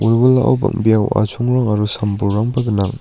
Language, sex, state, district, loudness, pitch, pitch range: Garo, male, Meghalaya, North Garo Hills, -16 LUFS, 110 Hz, 105-125 Hz